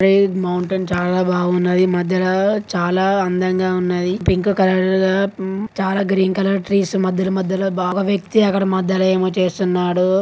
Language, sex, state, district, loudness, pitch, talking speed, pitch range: Telugu, female, Telangana, Karimnagar, -18 LUFS, 190 Hz, 135 wpm, 185-195 Hz